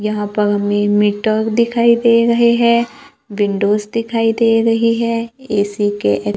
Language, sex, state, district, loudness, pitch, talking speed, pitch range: Hindi, female, Maharashtra, Gondia, -15 LUFS, 225 Hz, 140 wpm, 205-235 Hz